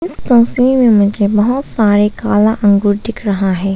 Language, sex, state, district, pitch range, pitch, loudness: Hindi, female, Arunachal Pradesh, Papum Pare, 205-235 Hz, 210 Hz, -12 LUFS